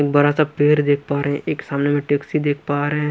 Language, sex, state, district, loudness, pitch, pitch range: Hindi, male, Punjab, Pathankot, -19 LUFS, 145 Hz, 145-150 Hz